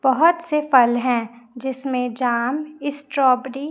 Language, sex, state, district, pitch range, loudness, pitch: Hindi, female, Chhattisgarh, Raipur, 245-285 Hz, -20 LUFS, 265 Hz